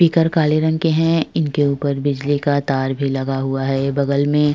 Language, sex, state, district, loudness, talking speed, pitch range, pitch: Hindi, female, Uttar Pradesh, Jyotiba Phule Nagar, -18 LUFS, 210 wpm, 135-155 Hz, 145 Hz